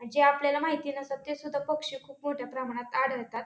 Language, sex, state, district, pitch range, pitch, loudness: Marathi, female, Maharashtra, Pune, 260-290 Hz, 280 Hz, -30 LUFS